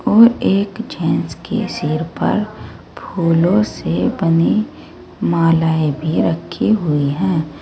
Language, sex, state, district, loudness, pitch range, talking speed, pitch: Hindi, female, Uttar Pradesh, Saharanpur, -17 LUFS, 160-215 Hz, 110 wpm, 170 Hz